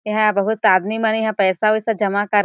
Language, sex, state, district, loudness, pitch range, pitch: Chhattisgarhi, female, Chhattisgarh, Jashpur, -18 LUFS, 205-220 Hz, 215 Hz